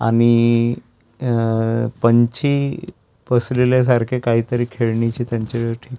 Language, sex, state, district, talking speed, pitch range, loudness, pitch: Marathi, male, Maharashtra, Gondia, 80 wpm, 115-125 Hz, -18 LUFS, 120 Hz